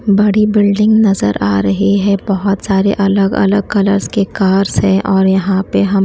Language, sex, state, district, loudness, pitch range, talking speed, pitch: Hindi, female, Haryana, Charkhi Dadri, -12 LUFS, 195-200 Hz, 180 wpm, 200 Hz